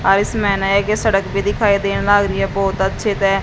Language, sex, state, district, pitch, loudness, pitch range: Hindi, female, Haryana, Jhajjar, 200 Hz, -16 LUFS, 195-205 Hz